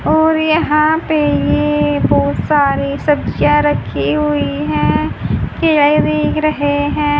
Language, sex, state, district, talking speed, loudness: Hindi, female, Haryana, Charkhi Dadri, 100 wpm, -14 LUFS